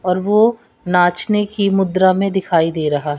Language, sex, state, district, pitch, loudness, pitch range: Hindi, female, Madhya Pradesh, Katni, 185 Hz, -16 LUFS, 175-205 Hz